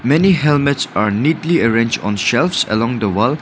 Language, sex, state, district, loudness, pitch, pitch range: English, male, Nagaland, Dimapur, -15 LUFS, 120 Hz, 110-150 Hz